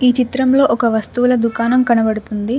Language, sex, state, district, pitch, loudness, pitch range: Telugu, female, Telangana, Mahabubabad, 240 Hz, -15 LUFS, 225-250 Hz